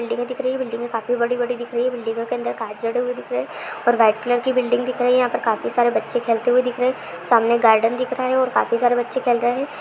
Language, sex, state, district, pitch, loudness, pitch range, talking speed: Hindi, female, Bihar, Supaul, 245 Hz, -20 LUFS, 230-250 Hz, 300 wpm